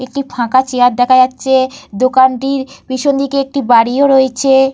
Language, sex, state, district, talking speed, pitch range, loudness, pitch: Bengali, female, Jharkhand, Jamtara, 125 wpm, 255-270 Hz, -12 LUFS, 260 Hz